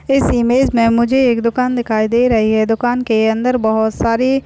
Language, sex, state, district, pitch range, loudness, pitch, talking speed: Hindi, female, Uttar Pradesh, Budaun, 225-250 Hz, -14 LUFS, 235 Hz, 215 wpm